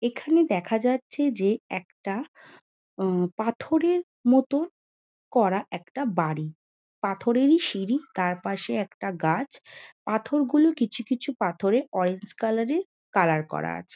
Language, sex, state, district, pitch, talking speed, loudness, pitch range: Bengali, female, West Bengal, Kolkata, 225 Hz, 115 wpm, -26 LUFS, 190-275 Hz